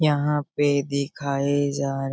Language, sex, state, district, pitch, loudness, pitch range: Hindi, male, Bihar, Araria, 140 Hz, -24 LUFS, 140-145 Hz